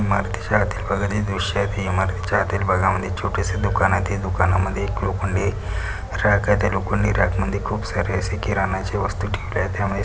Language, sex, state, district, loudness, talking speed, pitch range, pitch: Marathi, male, Maharashtra, Pune, -22 LUFS, 185 wpm, 95-100 Hz, 100 Hz